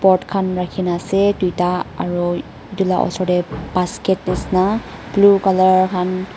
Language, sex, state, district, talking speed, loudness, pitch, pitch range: Nagamese, female, Nagaland, Dimapur, 140 wpm, -18 LUFS, 185 Hz, 180-195 Hz